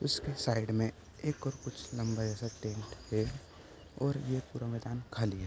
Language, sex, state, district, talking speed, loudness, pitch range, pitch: Hindi, male, Uttar Pradesh, Budaun, 175 wpm, -37 LUFS, 110-135 Hz, 115 Hz